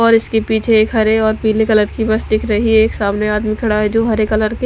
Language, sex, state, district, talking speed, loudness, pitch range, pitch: Hindi, female, Punjab, Fazilka, 295 wpm, -14 LUFS, 215-225 Hz, 220 Hz